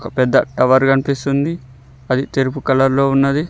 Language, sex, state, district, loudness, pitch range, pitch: Telugu, male, Telangana, Mahabubabad, -16 LUFS, 130-140 Hz, 135 Hz